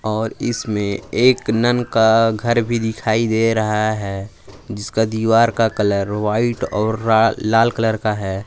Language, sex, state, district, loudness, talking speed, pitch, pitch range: Hindi, male, Jharkhand, Palamu, -18 LUFS, 155 wpm, 110 Hz, 105-115 Hz